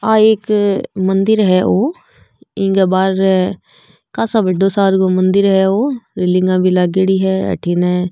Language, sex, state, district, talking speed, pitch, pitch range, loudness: Marwari, female, Rajasthan, Nagaur, 150 wpm, 190 Hz, 185-205 Hz, -14 LUFS